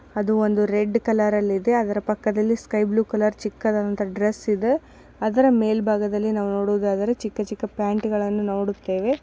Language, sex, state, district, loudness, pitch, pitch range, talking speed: Kannada, female, Karnataka, Dakshina Kannada, -22 LUFS, 210 Hz, 205-220 Hz, 150 wpm